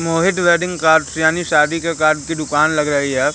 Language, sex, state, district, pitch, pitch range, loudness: Hindi, male, Madhya Pradesh, Katni, 160 Hz, 150-165 Hz, -16 LUFS